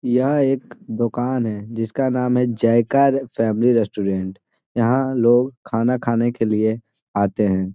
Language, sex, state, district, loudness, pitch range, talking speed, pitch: Hindi, male, Bihar, Gaya, -20 LUFS, 110-125 Hz, 145 wpm, 120 Hz